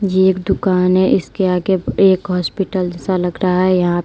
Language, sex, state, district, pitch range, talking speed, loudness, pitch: Hindi, female, Uttar Pradesh, Lalitpur, 180-190 Hz, 210 wpm, -16 LUFS, 185 Hz